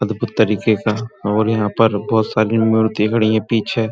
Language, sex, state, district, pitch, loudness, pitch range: Hindi, male, Uttar Pradesh, Muzaffarnagar, 110 Hz, -17 LUFS, 105-110 Hz